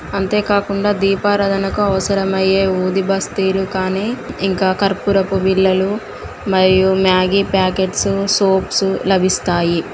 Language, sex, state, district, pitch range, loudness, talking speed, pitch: Telugu, female, Andhra Pradesh, Guntur, 190-195 Hz, -16 LUFS, 105 wpm, 195 Hz